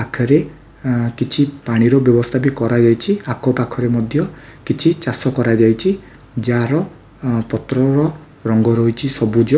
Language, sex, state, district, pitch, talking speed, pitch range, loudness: Odia, male, Odisha, Khordha, 125 Hz, 115 wpm, 115-145 Hz, -17 LUFS